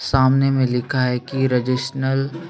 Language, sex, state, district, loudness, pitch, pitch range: Hindi, male, Chhattisgarh, Sukma, -19 LUFS, 130 Hz, 125-135 Hz